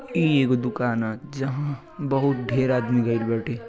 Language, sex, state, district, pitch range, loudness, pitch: Bhojpuri, male, Uttar Pradesh, Gorakhpur, 120-140 Hz, -24 LUFS, 130 Hz